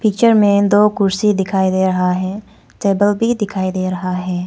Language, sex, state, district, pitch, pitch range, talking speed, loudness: Hindi, female, Arunachal Pradesh, Papum Pare, 195 Hz, 185-210 Hz, 190 wpm, -15 LUFS